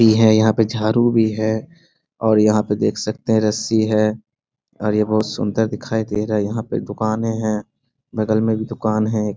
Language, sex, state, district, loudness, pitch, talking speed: Hindi, male, Bihar, Sitamarhi, -19 LUFS, 110 Hz, 210 wpm